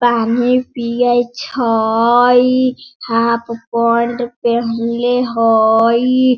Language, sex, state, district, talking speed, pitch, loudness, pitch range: Hindi, female, Bihar, Sitamarhi, 65 wpm, 235 Hz, -14 LUFS, 230-245 Hz